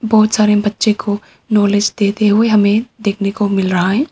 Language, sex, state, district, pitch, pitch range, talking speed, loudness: Hindi, female, Arunachal Pradesh, Papum Pare, 210 Hz, 205-215 Hz, 190 wpm, -14 LUFS